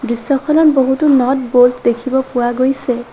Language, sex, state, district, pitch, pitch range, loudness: Assamese, female, Assam, Sonitpur, 260 Hz, 245-270 Hz, -13 LUFS